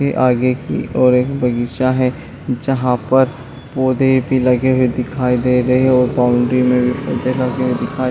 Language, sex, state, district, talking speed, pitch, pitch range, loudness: Hindi, male, Chhattisgarh, Raigarh, 185 wpm, 125 Hz, 125-130 Hz, -16 LUFS